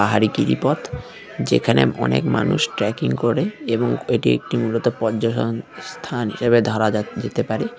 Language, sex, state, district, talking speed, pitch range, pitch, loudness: Bengali, male, West Bengal, Cooch Behar, 140 wpm, 105-115 Hz, 110 Hz, -20 LUFS